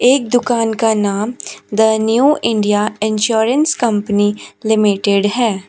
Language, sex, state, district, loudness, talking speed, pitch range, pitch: Hindi, female, Uttar Pradesh, Shamli, -15 LUFS, 115 wpm, 210-235 Hz, 220 Hz